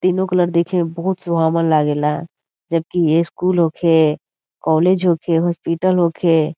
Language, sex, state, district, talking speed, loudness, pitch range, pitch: Bhojpuri, female, Bihar, Saran, 145 wpm, -17 LUFS, 160-180 Hz, 170 Hz